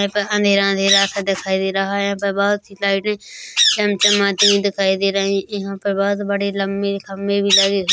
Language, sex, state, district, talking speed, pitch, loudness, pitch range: Hindi, female, Chhattisgarh, Korba, 210 wpm, 200 Hz, -17 LUFS, 195-200 Hz